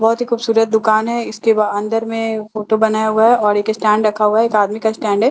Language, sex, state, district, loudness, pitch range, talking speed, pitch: Hindi, female, Bihar, Katihar, -15 LUFS, 215-225 Hz, 280 wpm, 220 Hz